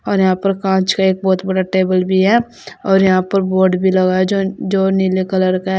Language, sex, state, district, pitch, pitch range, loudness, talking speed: Hindi, female, Uttar Pradesh, Saharanpur, 190 Hz, 185-195 Hz, -15 LUFS, 250 wpm